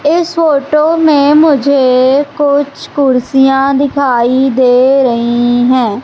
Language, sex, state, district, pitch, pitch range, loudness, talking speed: Hindi, female, Madhya Pradesh, Umaria, 275 Hz, 255-290 Hz, -10 LUFS, 100 wpm